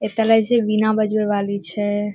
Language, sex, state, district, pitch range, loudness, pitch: Maithili, female, Bihar, Saharsa, 205-220 Hz, -19 LUFS, 215 Hz